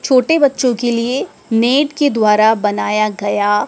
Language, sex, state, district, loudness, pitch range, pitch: Hindi, female, Madhya Pradesh, Dhar, -14 LUFS, 210-265 Hz, 235 Hz